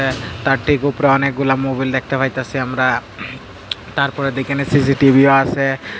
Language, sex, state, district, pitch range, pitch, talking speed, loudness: Bengali, male, Tripura, Dhalai, 135-140 Hz, 135 Hz, 130 wpm, -16 LUFS